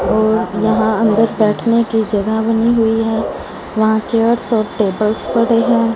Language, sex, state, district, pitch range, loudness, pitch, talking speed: Hindi, female, Punjab, Fazilka, 220-230 Hz, -15 LUFS, 225 Hz, 150 wpm